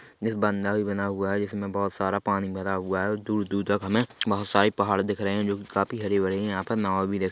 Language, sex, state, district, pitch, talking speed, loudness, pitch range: Hindi, male, Chhattisgarh, Korba, 100 Hz, 255 wpm, -27 LUFS, 100-105 Hz